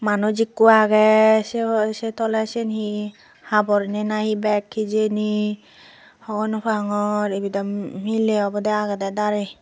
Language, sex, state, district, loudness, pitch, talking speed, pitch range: Chakma, female, Tripura, Dhalai, -20 LUFS, 215 Hz, 125 wpm, 210-220 Hz